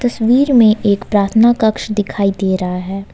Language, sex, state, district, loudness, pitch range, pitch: Hindi, female, Jharkhand, Ranchi, -14 LUFS, 195-230 Hz, 210 Hz